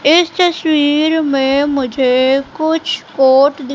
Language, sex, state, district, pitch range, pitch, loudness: Hindi, female, Madhya Pradesh, Katni, 270-315 Hz, 290 Hz, -13 LUFS